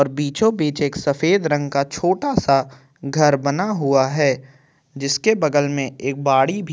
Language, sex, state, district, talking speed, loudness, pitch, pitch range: Hindi, male, Chhattisgarh, Kabirdham, 180 wpm, -19 LUFS, 145 Hz, 140-155 Hz